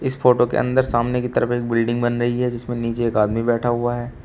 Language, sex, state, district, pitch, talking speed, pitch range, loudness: Hindi, male, Uttar Pradesh, Shamli, 120 Hz, 270 wpm, 120-125 Hz, -20 LUFS